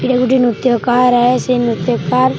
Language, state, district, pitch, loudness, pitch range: Sambalpuri, Odisha, Sambalpur, 250 Hz, -13 LUFS, 240-255 Hz